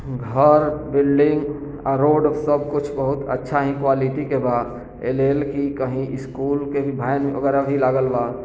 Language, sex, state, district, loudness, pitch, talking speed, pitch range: Bhojpuri, male, Bihar, East Champaran, -20 LUFS, 140 Hz, 150 wpm, 130-145 Hz